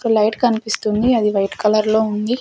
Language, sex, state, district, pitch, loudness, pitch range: Telugu, female, Andhra Pradesh, Sri Satya Sai, 220 Hz, -17 LUFS, 210-230 Hz